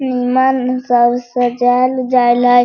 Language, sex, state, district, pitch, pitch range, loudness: Hindi, female, Bihar, Sitamarhi, 245 Hz, 245-255 Hz, -13 LUFS